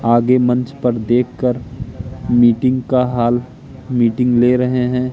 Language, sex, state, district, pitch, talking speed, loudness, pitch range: Hindi, male, Madhya Pradesh, Katni, 125 Hz, 130 wpm, -16 LUFS, 120-125 Hz